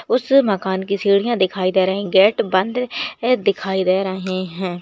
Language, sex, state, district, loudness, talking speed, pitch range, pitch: Hindi, female, Rajasthan, Nagaur, -18 LUFS, 185 wpm, 185-210 Hz, 195 Hz